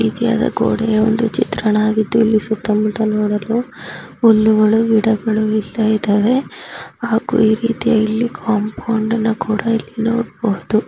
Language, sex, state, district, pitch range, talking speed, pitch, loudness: Kannada, female, Karnataka, Raichur, 215-230 Hz, 90 wpm, 220 Hz, -16 LUFS